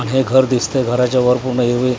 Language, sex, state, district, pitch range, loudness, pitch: Marathi, male, Maharashtra, Mumbai Suburban, 125-130 Hz, -15 LUFS, 125 Hz